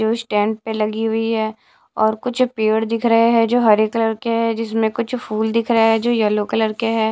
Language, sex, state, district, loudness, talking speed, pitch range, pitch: Hindi, female, Odisha, Sambalpur, -18 LUFS, 235 wpm, 220-230 Hz, 225 Hz